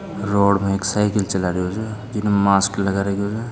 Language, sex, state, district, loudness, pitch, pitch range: Marwari, male, Rajasthan, Nagaur, -20 LUFS, 100 Hz, 100-105 Hz